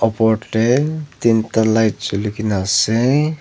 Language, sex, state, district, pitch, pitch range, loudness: Nagamese, male, Nagaland, Dimapur, 110 Hz, 110-125 Hz, -17 LUFS